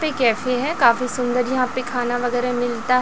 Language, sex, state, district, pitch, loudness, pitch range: Hindi, female, Chhattisgarh, Raipur, 250 Hz, -20 LUFS, 245-255 Hz